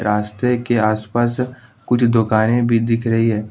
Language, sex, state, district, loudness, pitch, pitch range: Hindi, male, Jharkhand, Ranchi, -17 LUFS, 115 Hz, 110-120 Hz